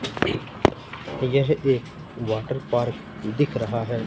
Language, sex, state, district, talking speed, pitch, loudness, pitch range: Hindi, male, Madhya Pradesh, Katni, 105 wpm, 120 Hz, -25 LUFS, 115-140 Hz